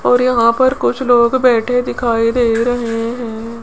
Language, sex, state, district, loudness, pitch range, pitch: Hindi, female, Rajasthan, Jaipur, -14 LUFS, 230-245 Hz, 240 Hz